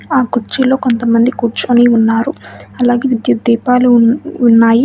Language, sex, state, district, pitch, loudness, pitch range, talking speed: Telugu, female, Telangana, Hyderabad, 240 Hz, -12 LUFS, 235-250 Hz, 110 wpm